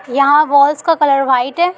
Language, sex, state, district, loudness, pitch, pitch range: Hindi, female, Bihar, Gopalganj, -12 LUFS, 285 Hz, 275-305 Hz